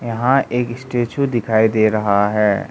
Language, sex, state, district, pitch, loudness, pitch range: Hindi, male, Arunachal Pradesh, Lower Dibang Valley, 115 Hz, -17 LUFS, 105-120 Hz